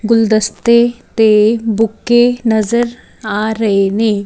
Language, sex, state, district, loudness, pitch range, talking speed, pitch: Punjabi, female, Chandigarh, Chandigarh, -13 LUFS, 215-235 Hz, 100 wpm, 225 Hz